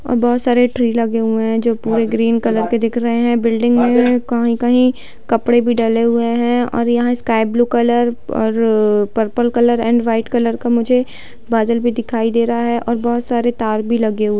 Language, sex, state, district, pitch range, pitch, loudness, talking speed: Hindi, female, Bihar, Darbhanga, 230-240 Hz, 235 Hz, -15 LUFS, 205 wpm